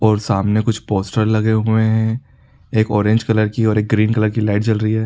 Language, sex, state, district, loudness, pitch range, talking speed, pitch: Sadri, male, Chhattisgarh, Jashpur, -17 LUFS, 105-110 Hz, 235 wpm, 110 Hz